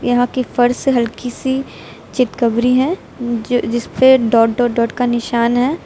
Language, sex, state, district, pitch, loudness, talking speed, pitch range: Hindi, female, Uttar Pradesh, Lucknow, 245 Hz, -16 LUFS, 155 wpm, 235-255 Hz